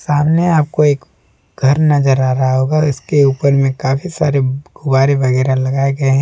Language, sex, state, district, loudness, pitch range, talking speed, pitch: Hindi, male, Jharkhand, Deoghar, -14 LUFS, 135-150 Hz, 165 wpm, 140 Hz